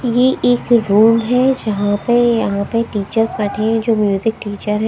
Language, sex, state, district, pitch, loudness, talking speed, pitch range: Hindi, female, Punjab, Kapurthala, 225 Hz, -15 LUFS, 195 wpm, 205-240 Hz